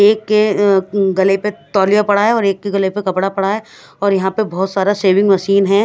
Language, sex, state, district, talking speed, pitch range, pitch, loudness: Hindi, female, Odisha, Khordha, 245 wpm, 195-205 Hz, 200 Hz, -15 LUFS